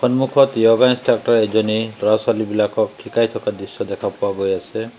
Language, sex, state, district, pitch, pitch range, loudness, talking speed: Assamese, male, Assam, Sonitpur, 110 Hz, 105-120 Hz, -18 LUFS, 155 wpm